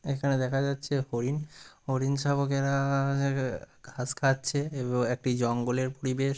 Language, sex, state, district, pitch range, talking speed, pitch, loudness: Bengali, male, West Bengal, Purulia, 130-140 Hz, 150 wpm, 135 Hz, -29 LUFS